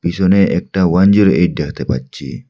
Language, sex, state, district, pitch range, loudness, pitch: Bengali, male, Assam, Hailakandi, 70-95 Hz, -14 LUFS, 90 Hz